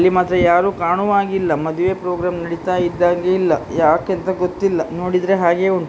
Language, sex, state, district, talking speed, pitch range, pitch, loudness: Kannada, female, Karnataka, Dakshina Kannada, 185 wpm, 175-185 Hz, 180 Hz, -17 LUFS